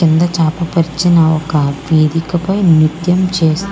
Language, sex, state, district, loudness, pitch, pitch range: Telugu, female, Andhra Pradesh, Srikakulam, -13 LUFS, 165 Hz, 155-175 Hz